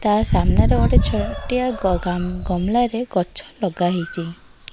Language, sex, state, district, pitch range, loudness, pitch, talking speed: Odia, female, Odisha, Malkangiri, 180-230 Hz, -19 LUFS, 185 Hz, 100 wpm